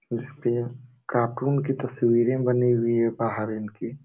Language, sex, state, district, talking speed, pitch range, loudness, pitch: Hindi, male, Uttar Pradesh, Jalaun, 150 wpm, 115-125 Hz, -25 LUFS, 120 Hz